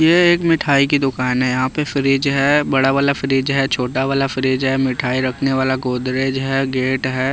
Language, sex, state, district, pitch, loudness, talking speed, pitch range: Hindi, male, Bihar, West Champaran, 135 Hz, -17 LUFS, 205 wpm, 130-140 Hz